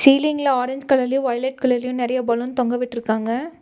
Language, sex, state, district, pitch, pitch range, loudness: Tamil, female, Tamil Nadu, Nilgiris, 255 Hz, 245-270 Hz, -21 LUFS